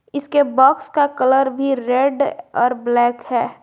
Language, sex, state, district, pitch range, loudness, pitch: Hindi, female, Jharkhand, Garhwa, 250-285 Hz, -17 LUFS, 270 Hz